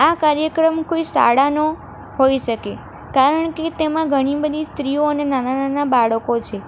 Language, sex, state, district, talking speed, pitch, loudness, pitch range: Gujarati, female, Gujarat, Valsad, 145 wpm, 290 Hz, -18 LUFS, 270-315 Hz